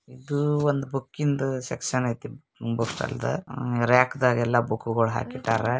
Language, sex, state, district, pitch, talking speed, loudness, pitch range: Kannada, male, Karnataka, Bijapur, 125 Hz, 115 wpm, -26 LUFS, 120-135 Hz